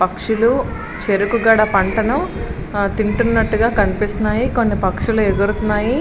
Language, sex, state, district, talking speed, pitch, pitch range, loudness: Telugu, female, Andhra Pradesh, Srikakulam, 100 wpm, 215 Hz, 205-230 Hz, -17 LUFS